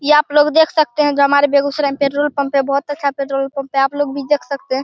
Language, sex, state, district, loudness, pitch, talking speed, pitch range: Hindi, male, Bihar, Begusarai, -16 LUFS, 280 Hz, 295 wpm, 275-295 Hz